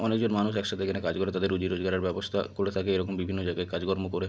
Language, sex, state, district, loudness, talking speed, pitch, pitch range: Bengali, male, West Bengal, Jalpaiguri, -29 LUFS, 280 wpm, 95 Hz, 95-100 Hz